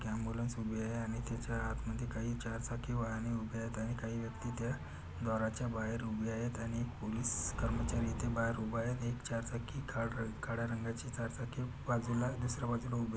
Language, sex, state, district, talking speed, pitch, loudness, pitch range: Marathi, male, Maharashtra, Pune, 175 wpm, 115 Hz, -39 LUFS, 115-120 Hz